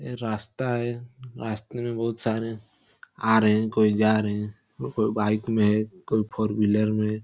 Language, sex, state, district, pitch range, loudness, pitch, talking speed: Hindi, male, Bihar, Darbhanga, 105-115 Hz, -25 LUFS, 110 Hz, 175 wpm